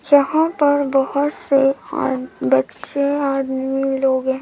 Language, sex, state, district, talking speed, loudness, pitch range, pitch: Hindi, female, Chhattisgarh, Raipur, 120 wpm, -18 LUFS, 265-285 Hz, 270 Hz